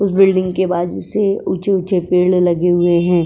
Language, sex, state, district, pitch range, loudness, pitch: Hindi, female, Uttar Pradesh, Etah, 175-190 Hz, -15 LUFS, 180 Hz